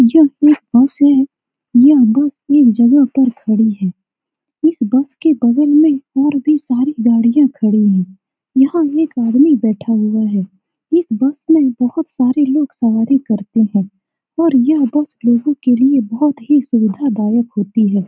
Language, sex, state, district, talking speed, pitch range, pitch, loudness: Hindi, female, Bihar, Saran, 165 wpm, 225-290 Hz, 260 Hz, -13 LUFS